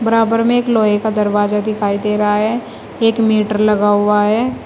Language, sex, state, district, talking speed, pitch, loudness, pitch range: Hindi, female, Uttar Pradesh, Shamli, 195 wpm, 215 Hz, -15 LUFS, 210-225 Hz